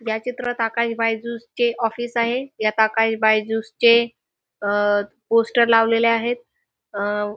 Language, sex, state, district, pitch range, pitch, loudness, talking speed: Marathi, female, Maharashtra, Aurangabad, 220-235 Hz, 230 Hz, -20 LUFS, 130 wpm